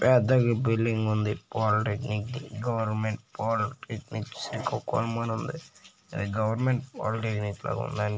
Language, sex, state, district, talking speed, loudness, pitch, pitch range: Telugu, male, Andhra Pradesh, Srikakulam, 110 wpm, -29 LUFS, 115 Hz, 110-125 Hz